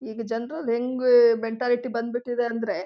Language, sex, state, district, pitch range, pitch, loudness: Kannada, female, Karnataka, Mysore, 230-245 Hz, 235 Hz, -24 LUFS